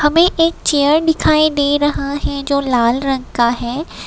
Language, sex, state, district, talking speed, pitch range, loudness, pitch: Hindi, female, Assam, Kamrup Metropolitan, 175 wpm, 270-310 Hz, -15 LUFS, 285 Hz